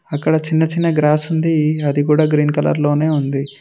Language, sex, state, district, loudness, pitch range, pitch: Telugu, male, Telangana, Mahabubabad, -16 LUFS, 145-160 Hz, 150 Hz